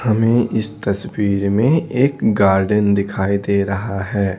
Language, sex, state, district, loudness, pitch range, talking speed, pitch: Hindi, male, Bihar, Patna, -17 LUFS, 100-110 Hz, 135 wpm, 100 Hz